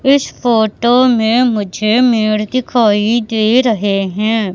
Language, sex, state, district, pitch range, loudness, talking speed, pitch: Hindi, female, Madhya Pradesh, Katni, 215-245 Hz, -13 LUFS, 120 wpm, 225 Hz